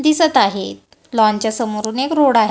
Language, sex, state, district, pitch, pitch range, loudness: Marathi, female, Maharashtra, Gondia, 225 Hz, 210-270 Hz, -16 LUFS